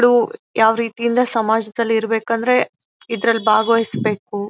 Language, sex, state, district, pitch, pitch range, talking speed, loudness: Kannada, female, Karnataka, Bellary, 230 Hz, 220-235 Hz, 105 wpm, -18 LUFS